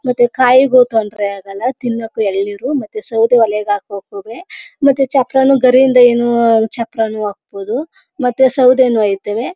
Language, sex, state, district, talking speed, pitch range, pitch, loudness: Kannada, male, Karnataka, Mysore, 120 wpm, 215-260 Hz, 235 Hz, -13 LUFS